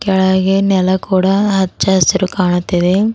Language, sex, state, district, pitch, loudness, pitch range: Kannada, female, Karnataka, Bidar, 190 Hz, -13 LUFS, 185-195 Hz